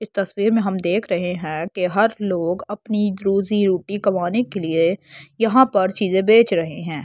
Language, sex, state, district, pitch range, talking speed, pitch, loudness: Hindi, female, Delhi, New Delhi, 175-210 Hz, 185 wpm, 195 Hz, -19 LUFS